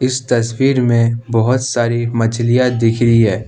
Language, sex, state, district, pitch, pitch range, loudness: Hindi, male, Jharkhand, Ranchi, 120 Hz, 115-125 Hz, -15 LUFS